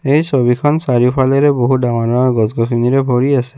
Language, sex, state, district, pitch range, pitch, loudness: Assamese, male, Assam, Kamrup Metropolitan, 120-140 Hz, 130 Hz, -13 LUFS